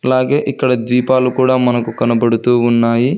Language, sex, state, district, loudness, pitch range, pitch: Telugu, male, Telangana, Hyderabad, -14 LUFS, 120-130 Hz, 125 Hz